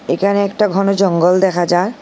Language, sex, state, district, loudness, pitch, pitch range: Bengali, female, Assam, Hailakandi, -14 LUFS, 195 Hz, 175-200 Hz